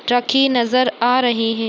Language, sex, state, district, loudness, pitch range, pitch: Hindi, female, Chhattisgarh, Raigarh, -16 LUFS, 235-255 Hz, 245 Hz